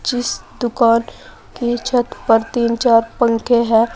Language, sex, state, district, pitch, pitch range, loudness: Hindi, female, Uttar Pradesh, Saharanpur, 235 Hz, 230-240 Hz, -16 LUFS